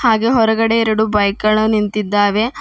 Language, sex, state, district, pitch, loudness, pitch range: Kannada, female, Karnataka, Bidar, 220 Hz, -15 LUFS, 210-225 Hz